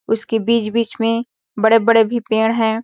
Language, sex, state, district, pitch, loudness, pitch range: Hindi, female, Chhattisgarh, Sarguja, 225 Hz, -17 LUFS, 225-230 Hz